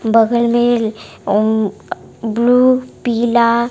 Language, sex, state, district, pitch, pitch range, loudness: Hindi, female, Bihar, West Champaran, 235 Hz, 220-240 Hz, -15 LUFS